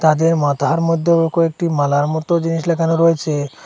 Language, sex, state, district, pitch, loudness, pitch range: Bengali, male, Assam, Hailakandi, 165 Hz, -16 LUFS, 150-165 Hz